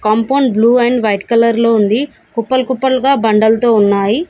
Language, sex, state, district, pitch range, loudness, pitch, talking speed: Telugu, female, Telangana, Komaram Bheem, 215-260 Hz, -12 LUFS, 230 Hz, 155 wpm